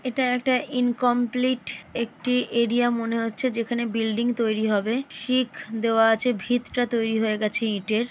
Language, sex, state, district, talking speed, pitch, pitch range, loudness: Bengali, female, West Bengal, Jalpaiguri, 140 wpm, 235 Hz, 225-250 Hz, -24 LUFS